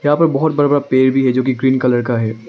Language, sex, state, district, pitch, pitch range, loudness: Hindi, male, Arunachal Pradesh, Longding, 130 Hz, 125-145 Hz, -15 LUFS